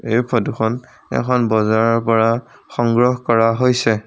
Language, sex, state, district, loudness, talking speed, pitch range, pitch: Assamese, male, Assam, Sonitpur, -17 LUFS, 120 wpm, 115-125 Hz, 115 Hz